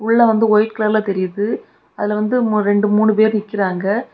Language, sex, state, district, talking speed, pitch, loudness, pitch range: Tamil, female, Tamil Nadu, Kanyakumari, 160 wpm, 215 Hz, -16 LUFS, 205-220 Hz